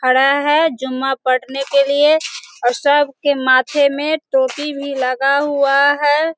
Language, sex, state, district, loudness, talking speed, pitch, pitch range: Hindi, female, Bihar, Sitamarhi, -15 LUFS, 150 wpm, 280 Hz, 265-290 Hz